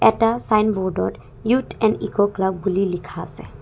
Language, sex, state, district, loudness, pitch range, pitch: Assamese, female, Assam, Kamrup Metropolitan, -21 LUFS, 190-220 Hz, 205 Hz